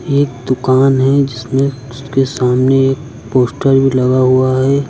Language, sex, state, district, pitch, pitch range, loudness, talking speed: Hindi, male, Uttar Pradesh, Lucknow, 130 Hz, 130-135 Hz, -13 LUFS, 145 wpm